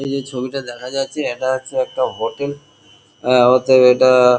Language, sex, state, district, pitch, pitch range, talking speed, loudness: Bengali, male, West Bengal, Kolkata, 130 Hz, 125-135 Hz, 165 wpm, -17 LUFS